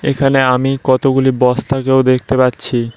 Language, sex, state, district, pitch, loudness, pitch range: Bengali, male, West Bengal, Cooch Behar, 130 Hz, -13 LUFS, 125-135 Hz